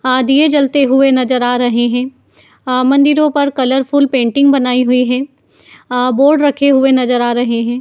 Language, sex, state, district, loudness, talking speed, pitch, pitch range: Hindi, female, Uttar Pradesh, Etah, -12 LUFS, 185 wpm, 260 Hz, 250-280 Hz